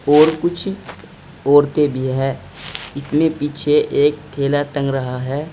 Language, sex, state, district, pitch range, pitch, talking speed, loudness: Hindi, male, Uttar Pradesh, Saharanpur, 140-155 Hz, 145 Hz, 130 wpm, -18 LUFS